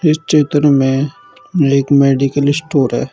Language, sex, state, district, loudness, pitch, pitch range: Hindi, male, Uttar Pradesh, Saharanpur, -13 LUFS, 145 Hz, 140-155 Hz